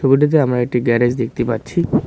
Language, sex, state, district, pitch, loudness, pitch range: Bengali, male, West Bengal, Cooch Behar, 125 Hz, -17 LUFS, 120-140 Hz